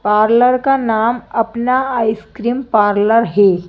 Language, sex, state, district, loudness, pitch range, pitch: Hindi, female, Madhya Pradesh, Bhopal, -14 LUFS, 210-245 Hz, 230 Hz